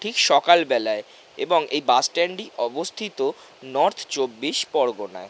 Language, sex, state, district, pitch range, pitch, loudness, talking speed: Bengali, male, West Bengal, North 24 Parganas, 145-220 Hz, 175 Hz, -22 LUFS, 125 wpm